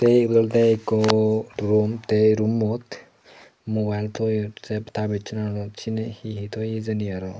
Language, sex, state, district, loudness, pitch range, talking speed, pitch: Chakma, male, Tripura, Dhalai, -23 LUFS, 105-110 Hz, 155 wpm, 110 Hz